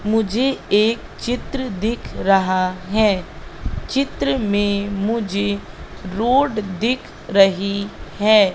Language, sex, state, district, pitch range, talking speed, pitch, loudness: Hindi, female, Madhya Pradesh, Katni, 195-230 Hz, 90 wpm, 205 Hz, -20 LUFS